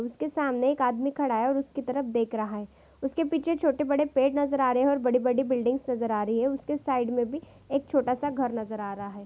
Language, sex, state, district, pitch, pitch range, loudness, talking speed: Maithili, female, Bihar, Supaul, 260 Hz, 240-280 Hz, -27 LUFS, 270 wpm